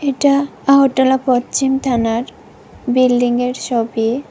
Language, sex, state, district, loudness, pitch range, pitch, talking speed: Bengali, female, Tripura, West Tripura, -15 LUFS, 245-270 Hz, 255 Hz, 85 wpm